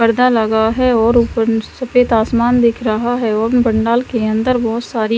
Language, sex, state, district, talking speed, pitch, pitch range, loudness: Hindi, female, Chandigarh, Chandigarh, 185 wpm, 230 Hz, 225-245 Hz, -14 LUFS